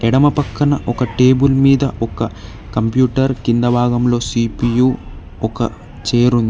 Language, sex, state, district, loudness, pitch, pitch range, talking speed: Telugu, male, Telangana, Hyderabad, -16 LUFS, 120 Hz, 110-130 Hz, 120 wpm